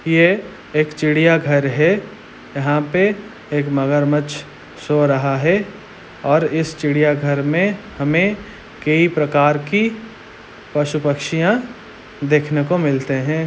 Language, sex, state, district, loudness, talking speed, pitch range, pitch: Hindi, male, Chhattisgarh, Raigarh, -17 LUFS, 120 wpm, 145-200 Hz, 155 Hz